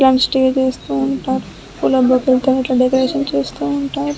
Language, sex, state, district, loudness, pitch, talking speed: Telugu, male, Andhra Pradesh, Guntur, -16 LUFS, 260 Hz, 130 wpm